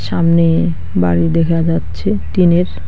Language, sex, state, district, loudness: Bengali, female, West Bengal, Alipurduar, -14 LUFS